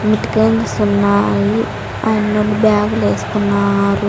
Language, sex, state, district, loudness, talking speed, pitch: Telugu, female, Andhra Pradesh, Sri Satya Sai, -15 LUFS, 75 wpm, 200 Hz